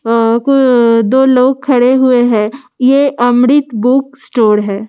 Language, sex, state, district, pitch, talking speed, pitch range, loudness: Hindi, female, Delhi, New Delhi, 250 Hz, 145 wpm, 230-265 Hz, -10 LUFS